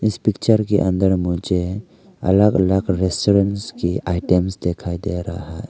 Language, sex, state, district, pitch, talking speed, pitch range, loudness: Hindi, male, Arunachal Pradesh, Lower Dibang Valley, 95 Hz, 150 wpm, 90-100 Hz, -19 LUFS